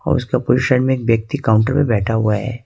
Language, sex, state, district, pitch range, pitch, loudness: Hindi, male, Jharkhand, Ranchi, 110-130 Hz, 120 Hz, -17 LUFS